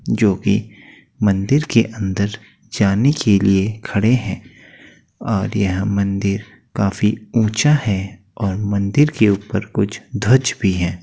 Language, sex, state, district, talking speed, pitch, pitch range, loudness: Hindi, male, Uttar Pradesh, Gorakhpur, 130 wpm, 105 Hz, 100-110 Hz, -18 LUFS